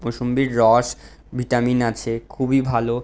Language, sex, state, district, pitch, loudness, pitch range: Bengali, male, West Bengal, Jhargram, 120 Hz, -20 LUFS, 115-125 Hz